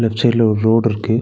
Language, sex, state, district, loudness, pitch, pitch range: Tamil, male, Tamil Nadu, Nilgiris, -15 LUFS, 115 Hz, 110-115 Hz